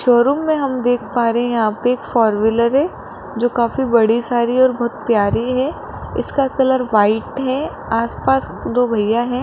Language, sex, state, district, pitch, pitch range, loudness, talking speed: Hindi, female, Rajasthan, Jaipur, 245 Hz, 230-260 Hz, -17 LUFS, 180 wpm